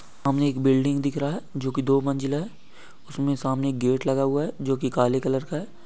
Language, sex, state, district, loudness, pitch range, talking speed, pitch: Hindi, male, Uttar Pradesh, Gorakhpur, -25 LUFS, 130-140 Hz, 225 wpm, 135 Hz